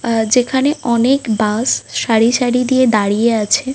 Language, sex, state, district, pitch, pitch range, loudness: Bengali, female, West Bengal, Paschim Medinipur, 235 Hz, 225-260 Hz, -14 LUFS